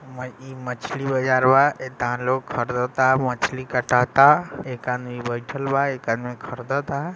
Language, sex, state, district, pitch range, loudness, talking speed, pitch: Bhojpuri, male, Bihar, East Champaran, 125-135 Hz, -22 LUFS, 150 wpm, 130 Hz